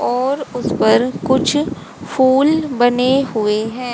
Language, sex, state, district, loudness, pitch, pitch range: Hindi, female, Haryana, Charkhi Dadri, -16 LUFS, 255 Hz, 240-275 Hz